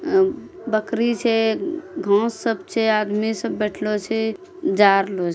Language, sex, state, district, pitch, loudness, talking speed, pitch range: Angika, female, Bihar, Bhagalpur, 220 Hz, -21 LUFS, 145 wpm, 210-240 Hz